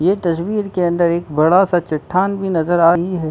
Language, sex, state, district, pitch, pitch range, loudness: Hindi, male, Jharkhand, Sahebganj, 175 Hz, 170-185 Hz, -16 LUFS